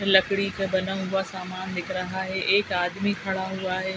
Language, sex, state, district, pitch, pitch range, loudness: Hindi, female, Bihar, Araria, 190 Hz, 185-195 Hz, -26 LUFS